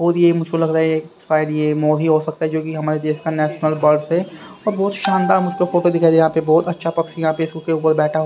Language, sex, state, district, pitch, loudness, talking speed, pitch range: Hindi, male, Haryana, Rohtak, 160 Hz, -18 LUFS, 275 wpm, 155-170 Hz